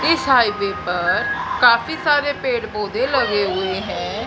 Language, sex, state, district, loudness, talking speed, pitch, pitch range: Hindi, female, Haryana, Charkhi Dadri, -18 LUFS, 140 wpm, 235 Hz, 205-285 Hz